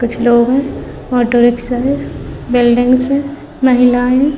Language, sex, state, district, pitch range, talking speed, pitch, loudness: Hindi, female, Uttar Pradesh, Muzaffarnagar, 240-265 Hz, 135 wpm, 250 Hz, -13 LUFS